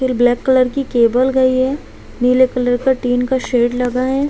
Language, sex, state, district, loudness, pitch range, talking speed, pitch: Hindi, female, Chhattisgarh, Balrampur, -15 LUFS, 245-260 Hz, 210 wpm, 255 Hz